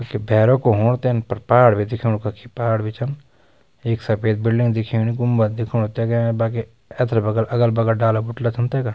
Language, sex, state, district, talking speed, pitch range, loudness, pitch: Garhwali, male, Uttarakhand, Tehri Garhwal, 200 wpm, 110-120 Hz, -19 LUFS, 115 Hz